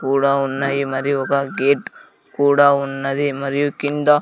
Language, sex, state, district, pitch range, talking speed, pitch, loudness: Telugu, male, Andhra Pradesh, Sri Satya Sai, 135-145 Hz, 140 wpm, 140 Hz, -18 LUFS